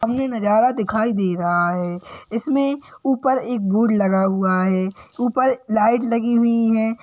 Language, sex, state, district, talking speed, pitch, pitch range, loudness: Hindi, male, Uttar Pradesh, Gorakhpur, 155 wpm, 225 Hz, 195-245 Hz, -19 LUFS